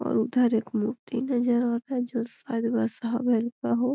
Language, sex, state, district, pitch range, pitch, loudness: Magahi, female, Bihar, Gaya, 230-245 Hz, 235 Hz, -27 LUFS